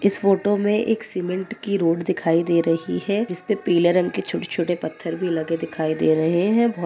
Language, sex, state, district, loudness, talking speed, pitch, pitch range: Hindi, male, Uttar Pradesh, Jyotiba Phule Nagar, -22 LUFS, 220 wpm, 180 Hz, 165-200 Hz